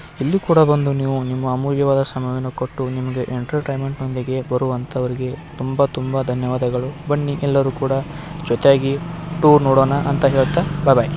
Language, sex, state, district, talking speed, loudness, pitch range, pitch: Kannada, male, Karnataka, Belgaum, 135 wpm, -19 LUFS, 130-145 Hz, 135 Hz